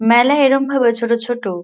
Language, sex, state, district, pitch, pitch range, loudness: Bengali, female, West Bengal, Kolkata, 240 Hz, 235-270 Hz, -15 LUFS